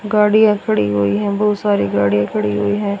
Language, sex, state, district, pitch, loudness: Hindi, female, Haryana, Rohtak, 200 Hz, -16 LUFS